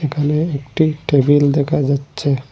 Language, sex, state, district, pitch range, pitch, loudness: Bengali, male, Assam, Hailakandi, 140-150 Hz, 145 Hz, -16 LUFS